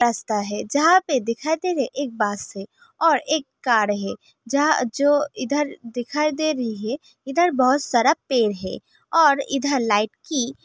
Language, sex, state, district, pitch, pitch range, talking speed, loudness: Hindi, female, Uttar Pradesh, Hamirpur, 275 Hz, 230-300 Hz, 175 wpm, -21 LUFS